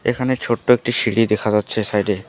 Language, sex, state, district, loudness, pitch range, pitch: Bengali, female, West Bengal, Alipurduar, -18 LUFS, 105-120 Hz, 115 Hz